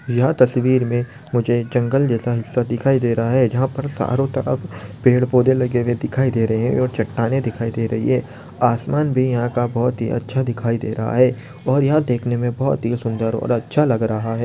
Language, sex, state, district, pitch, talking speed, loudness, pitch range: Hindi, male, Maharashtra, Dhule, 120 Hz, 215 wpm, -19 LUFS, 115-130 Hz